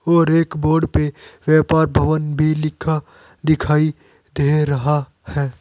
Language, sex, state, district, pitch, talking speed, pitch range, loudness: Hindi, male, Uttar Pradesh, Saharanpur, 155 Hz, 130 wpm, 145-155 Hz, -18 LUFS